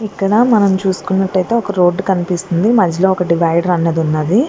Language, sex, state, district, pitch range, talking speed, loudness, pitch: Telugu, female, Andhra Pradesh, Guntur, 175-200 Hz, 120 wpm, -14 LUFS, 190 Hz